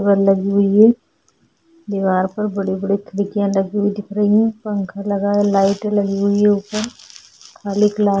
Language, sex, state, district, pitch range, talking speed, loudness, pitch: Hindi, female, Goa, North and South Goa, 200-210 Hz, 175 wpm, -17 LUFS, 200 Hz